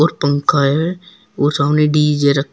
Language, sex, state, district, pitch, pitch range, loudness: Hindi, female, Uttar Pradesh, Shamli, 150 Hz, 140-155 Hz, -15 LUFS